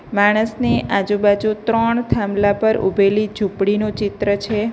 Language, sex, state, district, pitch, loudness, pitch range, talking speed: Gujarati, female, Gujarat, Navsari, 210 Hz, -18 LUFS, 200-215 Hz, 125 wpm